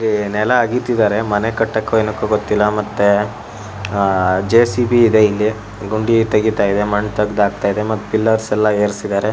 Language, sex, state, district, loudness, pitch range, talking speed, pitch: Kannada, male, Karnataka, Shimoga, -16 LUFS, 105-110 Hz, 135 wpm, 105 Hz